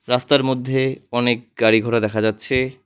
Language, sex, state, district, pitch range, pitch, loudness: Bengali, male, West Bengal, Alipurduar, 110-130 Hz, 120 Hz, -19 LUFS